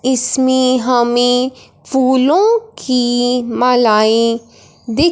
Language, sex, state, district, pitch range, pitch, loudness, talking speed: Hindi, female, Punjab, Fazilka, 240-260 Hz, 250 Hz, -13 LUFS, 70 wpm